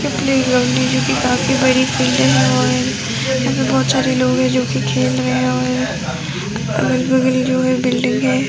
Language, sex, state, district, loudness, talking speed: Hindi, female, Uttar Pradesh, Jyotiba Phule Nagar, -16 LUFS, 200 wpm